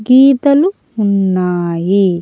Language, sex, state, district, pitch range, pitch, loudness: Telugu, female, Andhra Pradesh, Annamaya, 180-270 Hz, 200 Hz, -12 LUFS